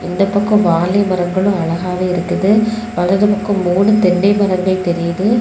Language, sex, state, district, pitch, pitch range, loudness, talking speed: Tamil, female, Tamil Nadu, Kanyakumari, 190 Hz, 180-205 Hz, -14 LUFS, 135 wpm